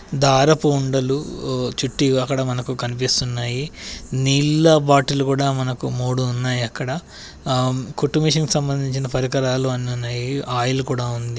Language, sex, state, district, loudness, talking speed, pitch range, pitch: Telugu, male, Telangana, Adilabad, -20 LUFS, 130 wpm, 125-140 Hz, 130 Hz